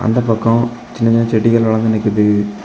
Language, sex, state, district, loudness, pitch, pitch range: Tamil, male, Tamil Nadu, Kanyakumari, -14 LUFS, 115 Hz, 110-115 Hz